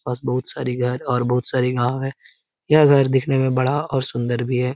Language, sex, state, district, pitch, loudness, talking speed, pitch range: Hindi, male, Bihar, Lakhisarai, 125 Hz, -20 LUFS, 225 wpm, 125-135 Hz